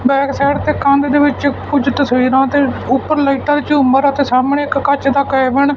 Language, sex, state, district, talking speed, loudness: Punjabi, male, Punjab, Fazilka, 205 wpm, -14 LUFS